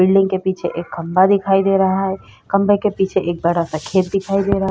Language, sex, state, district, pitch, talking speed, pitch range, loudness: Hindi, female, Uttar Pradesh, Jalaun, 190 Hz, 240 wpm, 180-195 Hz, -17 LUFS